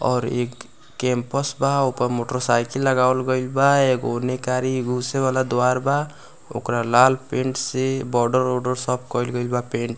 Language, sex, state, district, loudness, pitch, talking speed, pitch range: Bhojpuri, male, Bihar, Muzaffarpur, -21 LUFS, 125 Hz, 175 wpm, 125-130 Hz